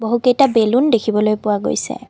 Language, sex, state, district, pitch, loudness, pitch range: Assamese, female, Assam, Kamrup Metropolitan, 225 Hz, -16 LUFS, 215-250 Hz